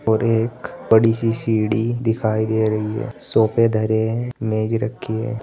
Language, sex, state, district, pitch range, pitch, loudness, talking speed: Hindi, male, Uttar Pradesh, Saharanpur, 110-115 Hz, 110 Hz, -20 LUFS, 165 wpm